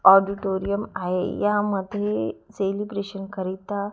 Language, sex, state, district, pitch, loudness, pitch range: Marathi, female, Maharashtra, Gondia, 200 Hz, -25 LUFS, 190-205 Hz